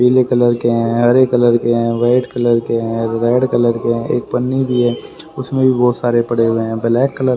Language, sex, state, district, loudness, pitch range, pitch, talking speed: Hindi, male, Haryana, Rohtak, -15 LUFS, 115-125 Hz, 120 Hz, 245 wpm